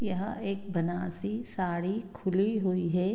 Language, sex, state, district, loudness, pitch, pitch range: Hindi, female, Bihar, Gopalganj, -31 LUFS, 190 Hz, 180-205 Hz